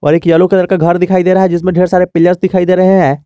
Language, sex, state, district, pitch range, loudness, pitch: Hindi, male, Jharkhand, Garhwa, 170-185 Hz, -10 LUFS, 180 Hz